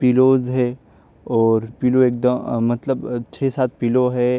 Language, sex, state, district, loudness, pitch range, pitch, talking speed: Hindi, male, Maharashtra, Chandrapur, -19 LUFS, 120-130 Hz, 125 Hz, 165 wpm